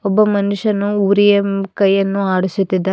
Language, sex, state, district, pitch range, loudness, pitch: Kannada, female, Karnataka, Bidar, 195-205 Hz, -15 LUFS, 200 Hz